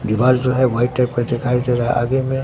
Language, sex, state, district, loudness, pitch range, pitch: Hindi, male, Bihar, Katihar, -18 LUFS, 120-130 Hz, 125 Hz